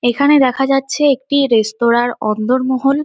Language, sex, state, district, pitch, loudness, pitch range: Bengali, female, West Bengal, North 24 Parganas, 260 Hz, -14 LUFS, 240-275 Hz